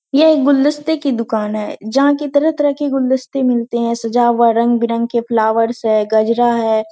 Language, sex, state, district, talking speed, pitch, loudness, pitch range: Hindi, female, Bihar, Purnia, 190 wpm, 235 Hz, -15 LUFS, 230-280 Hz